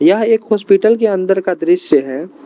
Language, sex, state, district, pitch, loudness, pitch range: Hindi, male, Arunachal Pradesh, Lower Dibang Valley, 200 Hz, -13 LUFS, 185-220 Hz